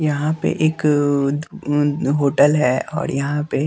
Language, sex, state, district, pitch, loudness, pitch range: Hindi, male, Bihar, West Champaran, 145 Hz, -19 LUFS, 140-155 Hz